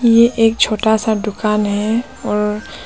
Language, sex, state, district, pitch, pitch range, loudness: Hindi, female, Arunachal Pradesh, Papum Pare, 220 Hz, 210-230 Hz, -16 LUFS